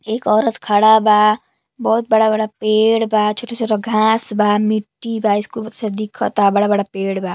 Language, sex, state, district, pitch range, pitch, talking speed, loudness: Bhojpuri, female, Uttar Pradesh, Gorakhpur, 210-220 Hz, 215 Hz, 140 wpm, -16 LUFS